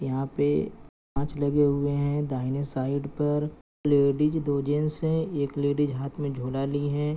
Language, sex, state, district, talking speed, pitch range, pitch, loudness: Hindi, male, Bihar, Gopalganj, 190 wpm, 140-145 Hz, 145 Hz, -27 LUFS